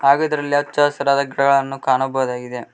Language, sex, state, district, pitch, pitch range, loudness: Kannada, male, Karnataka, Koppal, 140 Hz, 135-145 Hz, -18 LUFS